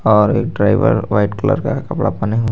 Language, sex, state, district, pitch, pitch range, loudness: Hindi, male, Jharkhand, Garhwa, 110 Hz, 105-135 Hz, -16 LUFS